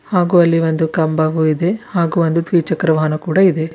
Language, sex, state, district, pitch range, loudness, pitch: Kannada, female, Karnataka, Bidar, 160-175 Hz, -15 LUFS, 165 Hz